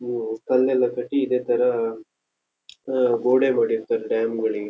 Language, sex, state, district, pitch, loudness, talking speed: Kannada, male, Karnataka, Shimoga, 130 Hz, -22 LUFS, 115 wpm